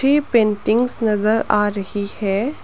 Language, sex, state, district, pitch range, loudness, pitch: Hindi, female, Arunachal Pradesh, Lower Dibang Valley, 205-245 Hz, -19 LUFS, 215 Hz